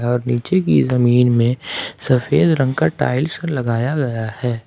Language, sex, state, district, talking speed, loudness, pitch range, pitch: Hindi, male, Jharkhand, Ranchi, 155 wpm, -17 LUFS, 120-145 Hz, 125 Hz